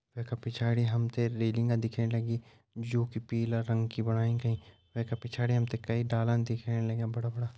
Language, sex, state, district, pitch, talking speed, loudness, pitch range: Garhwali, male, Uttarakhand, Uttarkashi, 115 Hz, 205 wpm, -32 LUFS, 115-120 Hz